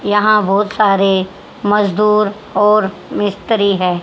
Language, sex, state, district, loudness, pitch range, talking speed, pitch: Hindi, female, Haryana, Charkhi Dadri, -14 LUFS, 195-210 Hz, 105 wpm, 205 Hz